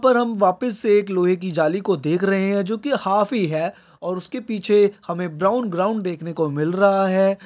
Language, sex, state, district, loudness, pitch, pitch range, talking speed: Hindi, male, Bihar, Jahanabad, -20 LUFS, 195 Hz, 180-210 Hz, 225 wpm